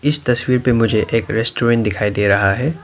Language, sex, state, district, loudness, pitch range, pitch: Hindi, male, Arunachal Pradesh, Lower Dibang Valley, -16 LUFS, 105-125 Hz, 115 Hz